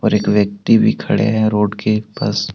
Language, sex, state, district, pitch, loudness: Hindi, male, Jharkhand, Deoghar, 110 Hz, -16 LUFS